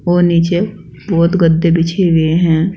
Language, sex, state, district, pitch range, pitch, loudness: Hindi, female, Uttar Pradesh, Saharanpur, 165-175 Hz, 170 Hz, -13 LUFS